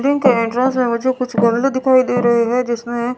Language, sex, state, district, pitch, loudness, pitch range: Hindi, female, Chandigarh, Chandigarh, 245 Hz, -16 LUFS, 235-260 Hz